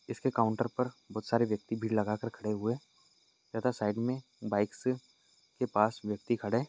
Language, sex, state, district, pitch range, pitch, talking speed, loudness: Hindi, male, Maharashtra, Nagpur, 105-125 Hz, 115 Hz, 190 wpm, -33 LUFS